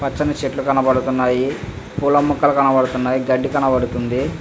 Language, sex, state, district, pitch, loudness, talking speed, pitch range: Telugu, male, Andhra Pradesh, Visakhapatnam, 130 Hz, -18 LUFS, 80 wpm, 130-140 Hz